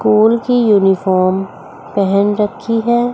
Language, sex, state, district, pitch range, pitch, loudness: Hindi, female, Chandigarh, Chandigarh, 195-230 Hz, 205 Hz, -14 LUFS